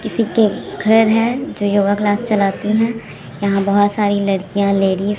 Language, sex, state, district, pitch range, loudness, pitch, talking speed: Hindi, female, Chhattisgarh, Raipur, 200-220 Hz, -16 LUFS, 205 Hz, 175 wpm